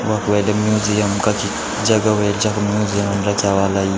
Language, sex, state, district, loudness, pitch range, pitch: Garhwali, male, Uttarakhand, Tehri Garhwal, -17 LUFS, 100-105 Hz, 105 Hz